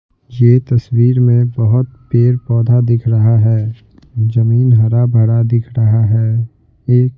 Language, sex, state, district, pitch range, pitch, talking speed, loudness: Hindi, male, Bihar, Patna, 110-120 Hz, 120 Hz, 125 wpm, -13 LUFS